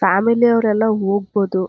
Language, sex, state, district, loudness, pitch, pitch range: Kannada, female, Karnataka, Chamarajanagar, -16 LUFS, 205 Hz, 195-220 Hz